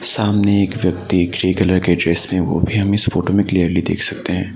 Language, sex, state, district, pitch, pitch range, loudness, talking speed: Hindi, male, Assam, Sonitpur, 95 Hz, 90-100 Hz, -16 LUFS, 250 wpm